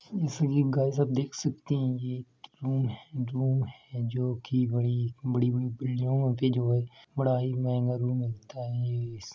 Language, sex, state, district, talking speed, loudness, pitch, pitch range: Hindi, male, Uttar Pradesh, Etah, 175 wpm, -30 LUFS, 125 Hz, 125-135 Hz